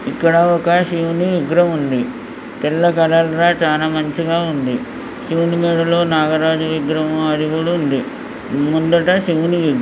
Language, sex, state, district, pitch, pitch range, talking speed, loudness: Telugu, male, Andhra Pradesh, Srikakulam, 165 Hz, 155-170 Hz, 130 wpm, -16 LUFS